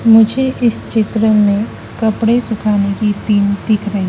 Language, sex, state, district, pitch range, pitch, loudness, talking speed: Hindi, female, Madhya Pradesh, Dhar, 205-225 Hz, 215 Hz, -14 LUFS, 145 wpm